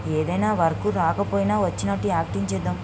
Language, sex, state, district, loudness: Telugu, female, Andhra Pradesh, Guntur, -23 LUFS